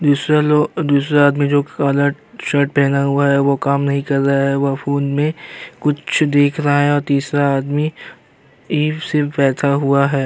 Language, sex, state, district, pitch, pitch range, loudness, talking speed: Hindi, male, Uttar Pradesh, Jyotiba Phule Nagar, 145 Hz, 140-150 Hz, -16 LUFS, 195 wpm